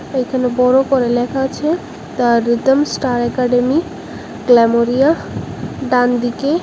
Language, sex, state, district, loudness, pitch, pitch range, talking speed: Bengali, male, Tripura, West Tripura, -15 LUFS, 250 Hz, 245-270 Hz, 100 wpm